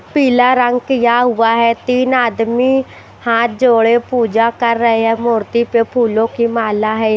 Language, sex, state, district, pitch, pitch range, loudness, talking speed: Hindi, female, Chhattisgarh, Raipur, 235 Hz, 225-245 Hz, -13 LUFS, 160 wpm